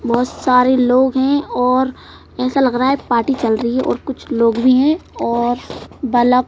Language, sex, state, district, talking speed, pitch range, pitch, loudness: Hindi, female, Madhya Pradesh, Bhopal, 185 wpm, 245-265 Hz, 255 Hz, -16 LUFS